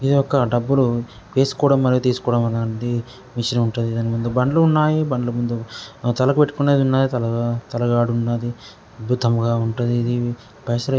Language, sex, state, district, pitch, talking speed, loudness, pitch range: Telugu, male, Telangana, Karimnagar, 120 Hz, 130 wpm, -20 LUFS, 115-135 Hz